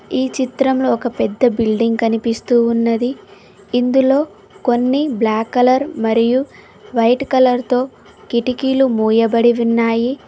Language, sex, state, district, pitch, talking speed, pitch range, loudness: Telugu, female, Telangana, Mahabubabad, 245 Hz, 105 wpm, 230-260 Hz, -16 LUFS